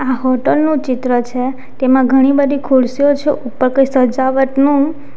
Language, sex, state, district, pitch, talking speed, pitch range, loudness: Gujarati, female, Gujarat, Valsad, 265 Hz, 160 wpm, 255-280 Hz, -14 LUFS